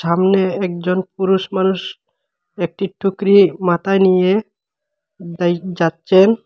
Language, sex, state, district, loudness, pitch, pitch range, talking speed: Bengali, male, Assam, Hailakandi, -16 LUFS, 190 Hz, 180-200 Hz, 95 wpm